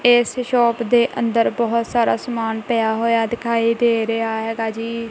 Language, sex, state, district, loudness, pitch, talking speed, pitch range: Punjabi, female, Punjab, Kapurthala, -19 LUFS, 230 Hz, 165 wpm, 225-235 Hz